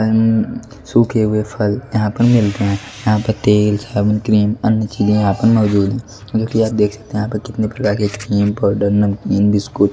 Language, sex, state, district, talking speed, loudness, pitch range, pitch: Hindi, male, Delhi, New Delhi, 200 wpm, -16 LUFS, 105-110 Hz, 105 Hz